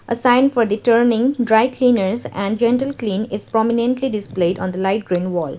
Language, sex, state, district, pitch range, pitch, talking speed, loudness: English, female, Sikkim, Gangtok, 195-245 Hz, 225 Hz, 195 wpm, -18 LUFS